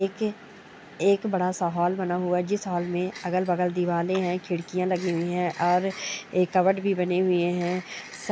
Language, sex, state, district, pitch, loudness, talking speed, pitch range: Hindi, female, West Bengal, Purulia, 180 Hz, -26 LUFS, 165 wpm, 175-190 Hz